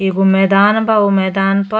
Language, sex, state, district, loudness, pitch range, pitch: Bhojpuri, female, Uttar Pradesh, Ghazipur, -13 LUFS, 195-205 Hz, 195 Hz